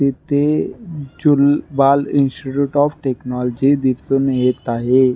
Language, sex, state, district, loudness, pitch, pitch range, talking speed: Marathi, male, Maharashtra, Nagpur, -17 LUFS, 140 Hz, 130-145 Hz, 95 wpm